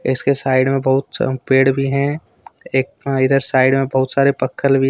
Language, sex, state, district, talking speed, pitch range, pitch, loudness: Hindi, male, Jharkhand, Deoghar, 210 wpm, 130-140 Hz, 135 Hz, -16 LUFS